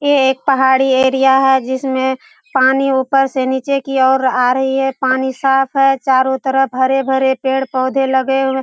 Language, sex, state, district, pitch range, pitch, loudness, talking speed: Hindi, female, Bihar, Purnia, 260-270 Hz, 265 Hz, -14 LUFS, 165 wpm